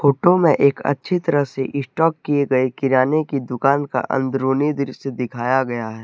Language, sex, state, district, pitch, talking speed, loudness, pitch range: Hindi, male, Jharkhand, Deoghar, 135 Hz, 180 wpm, -19 LUFS, 130-145 Hz